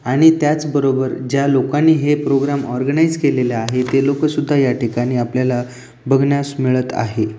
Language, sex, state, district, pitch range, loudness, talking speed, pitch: Marathi, male, Maharashtra, Aurangabad, 125-145 Hz, -16 LUFS, 145 wpm, 135 Hz